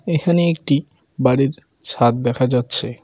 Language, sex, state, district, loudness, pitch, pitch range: Bengali, male, West Bengal, Cooch Behar, -18 LUFS, 135 Hz, 125-160 Hz